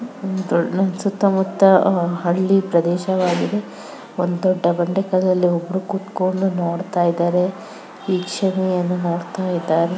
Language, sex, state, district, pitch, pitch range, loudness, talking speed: Kannada, female, Karnataka, Dakshina Kannada, 185 Hz, 175-190 Hz, -19 LUFS, 110 wpm